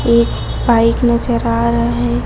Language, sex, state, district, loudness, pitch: Hindi, female, Chhattisgarh, Raipur, -15 LUFS, 225 Hz